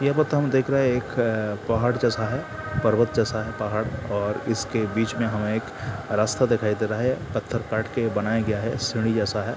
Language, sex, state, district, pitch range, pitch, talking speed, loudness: Hindi, male, Bihar, Sitamarhi, 110-120 Hz, 115 Hz, 240 wpm, -24 LUFS